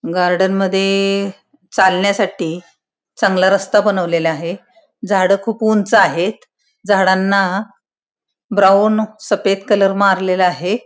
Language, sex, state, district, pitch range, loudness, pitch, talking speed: Marathi, female, Maharashtra, Pune, 185-210 Hz, -15 LUFS, 195 Hz, 95 wpm